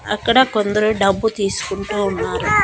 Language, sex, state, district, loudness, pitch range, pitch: Telugu, female, Andhra Pradesh, Annamaya, -18 LUFS, 200-220 Hz, 210 Hz